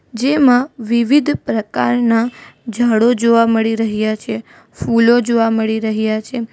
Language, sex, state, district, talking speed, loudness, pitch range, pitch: Gujarati, female, Gujarat, Valsad, 120 wpm, -15 LUFS, 220-245 Hz, 230 Hz